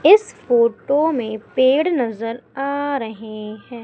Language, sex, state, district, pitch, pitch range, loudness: Hindi, female, Madhya Pradesh, Umaria, 240 Hz, 225-280 Hz, -19 LUFS